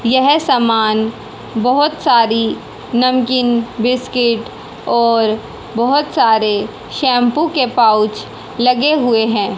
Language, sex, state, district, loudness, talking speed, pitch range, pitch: Hindi, female, Haryana, Charkhi Dadri, -14 LUFS, 95 wpm, 225-255 Hz, 240 Hz